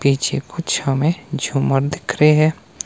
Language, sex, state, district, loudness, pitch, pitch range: Hindi, male, Himachal Pradesh, Shimla, -18 LUFS, 145 Hz, 135-155 Hz